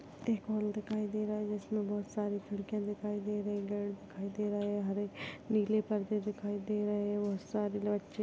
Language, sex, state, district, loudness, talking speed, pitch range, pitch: Hindi, female, Chhattisgarh, Bastar, -36 LUFS, 160 wpm, 205-210 Hz, 205 Hz